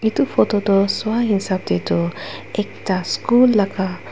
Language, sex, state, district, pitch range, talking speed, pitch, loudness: Nagamese, female, Nagaland, Dimapur, 180-215 Hz, 145 wpm, 195 Hz, -19 LUFS